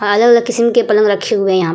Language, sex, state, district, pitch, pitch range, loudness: Hindi, female, Bihar, Vaishali, 210 Hz, 200-235 Hz, -12 LUFS